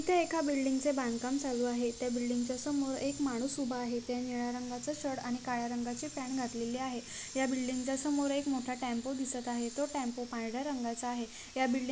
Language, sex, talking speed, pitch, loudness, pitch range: Marathi, female, 215 wpm, 255 Hz, -35 LUFS, 245-275 Hz